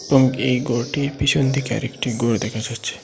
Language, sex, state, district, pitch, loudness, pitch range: Bengali, male, Assam, Hailakandi, 130 Hz, -21 LUFS, 120-135 Hz